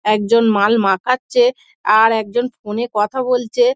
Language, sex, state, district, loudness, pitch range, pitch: Bengali, female, West Bengal, Dakshin Dinajpur, -16 LUFS, 215-250 Hz, 230 Hz